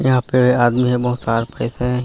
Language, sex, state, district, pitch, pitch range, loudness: Hindi, male, Chhattisgarh, Raigarh, 125 Hz, 120-125 Hz, -17 LUFS